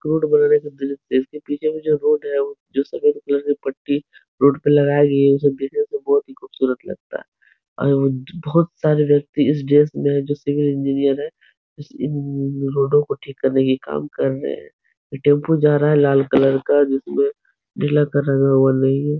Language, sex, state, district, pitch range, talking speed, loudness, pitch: Hindi, male, Uttar Pradesh, Etah, 140-150 Hz, 215 wpm, -18 LUFS, 145 Hz